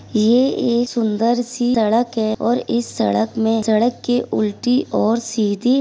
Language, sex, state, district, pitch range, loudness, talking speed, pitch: Hindi, female, Uttar Pradesh, Etah, 220-245 Hz, -18 LUFS, 165 wpm, 235 Hz